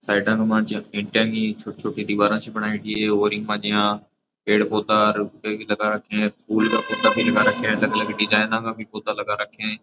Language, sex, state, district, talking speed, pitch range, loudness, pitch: Rajasthani, male, Rajasthan, Churu, 225 wpm, 105-110 Hz, -22 LUFS, 105 Hz